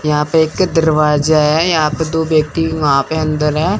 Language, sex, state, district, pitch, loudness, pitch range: Hindi, male, Chandigarh, Chandigarh, 155 Hz, -14 LUFS, 150-160 Hz